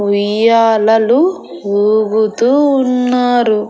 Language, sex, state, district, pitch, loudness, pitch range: Telugu, female, Andhra Pradesh, Annamaya, 225 Hz, -12 LUFS, 215-250 Hz